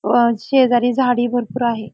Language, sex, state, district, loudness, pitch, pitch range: Marathi, female, Maharashtra, Pune, -17 LUFS, 240 Hz, 235-250 Hz